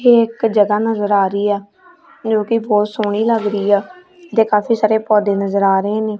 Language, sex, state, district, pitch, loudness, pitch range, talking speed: Punjabi, female, Punjab, Kapurthala, 215 Hz, -16 LUFS, 205-230 Hz, 205 wpm